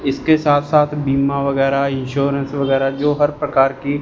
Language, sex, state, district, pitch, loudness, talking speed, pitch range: Hindi, male, Punjab, Fazilka, 140 Hz, -17 LUFS, 165 wpm, 135-145 Hz